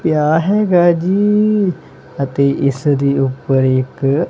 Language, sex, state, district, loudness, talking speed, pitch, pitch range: Punjabi, male, Punjab, Kapurthala, -15 LUFS, 100 wpm, 145 Hz, 140-180 Hz